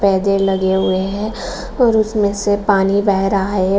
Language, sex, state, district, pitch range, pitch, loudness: Hindi, female, Bihar, Saran, 195-205 Hz, 200 Hz, -16 LUFS